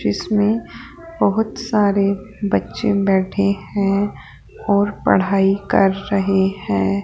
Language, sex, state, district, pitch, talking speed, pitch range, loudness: Hindi, female, Rajasthan, Jaipur, 200 Hz, 95 wpm, 190-205 Hz, -18 LUFS